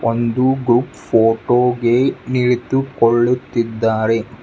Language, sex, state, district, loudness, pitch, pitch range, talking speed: Kannada, male, Karnataka, Bangalore, -16 LUFS, 120 Hz, 115-125 Hz, 80 wpm